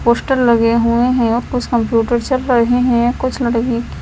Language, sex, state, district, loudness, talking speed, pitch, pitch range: Hindi, female, Himachal Pradesh, Shimla, -15 LUFS, 165 wpm, 240 Hz, 235-250 Hz